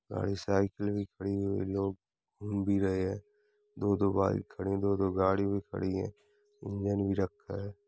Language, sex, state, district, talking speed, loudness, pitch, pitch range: Hindi, male, Uttar Pradesh, Hamirpur, 200 wpm, -32 LUFS, 100 Hz, 95-100 Hz